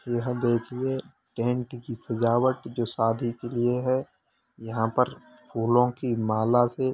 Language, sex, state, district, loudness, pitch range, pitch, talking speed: Hindi, male, Uttar Pradesh, Hamirpur, -26 LUFS, 115-125 Hz, 120 Hz, 140 wpm